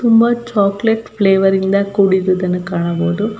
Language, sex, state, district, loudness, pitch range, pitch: Kannada, female, Karnataka, Belgaum, -15 LUFS, 185-225 Hz, 195 Hz